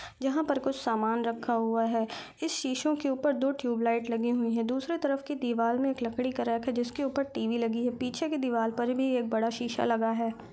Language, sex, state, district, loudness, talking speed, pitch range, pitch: Hindi, female, Chhattisgarh, Rajnandgaon, -30 LUFS, 250 wpm, 230-275 Hz, 245 Hz